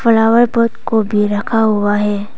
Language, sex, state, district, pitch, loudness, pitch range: Hindi, female, Arunachal Pradesh, Papum Pare, 220 Hz, -14 LUFS, 210-230 Hz